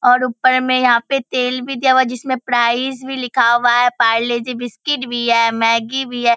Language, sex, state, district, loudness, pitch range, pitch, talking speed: Hindi, female, Bihar, Purnia, -16 LUFS, 235-255 Hz, 245 Hz, 225 wpm